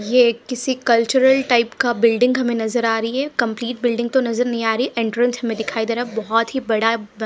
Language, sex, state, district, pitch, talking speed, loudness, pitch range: Hindi, female, Punjab, Pathankot, 235 Hz, 250 wpm, -19 LUFS, 225-250 Hz